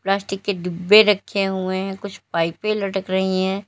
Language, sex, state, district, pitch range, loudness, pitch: Hindi, female, Uttar Pradesh, Lalitpur, 185-200 Hz, -20 LUFS, 195 Hz